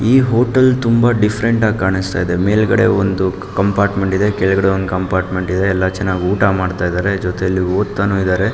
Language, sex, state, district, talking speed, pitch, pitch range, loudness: Kannada, male, Karnataka, Mysore, 150 wpm, 95 Hz, 95-105 Hz, -15 LUFS